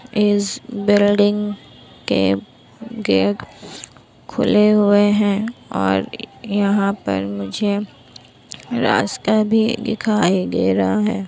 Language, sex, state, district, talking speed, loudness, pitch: Hindi, female, Bihar, Kishanganj, 90 wpm, -18 LUFS, 205 Hz